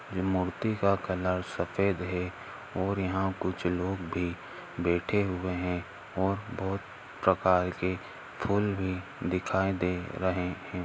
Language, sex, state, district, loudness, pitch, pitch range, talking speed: Hindi, male, Chhattisgarh, Raigarh, -31 LUFS, 95 Hz, 90-95 Hz, 135 wpm